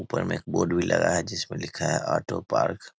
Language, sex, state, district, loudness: Hindi, male, Bihar, Muzaffarpur, -26 LUFS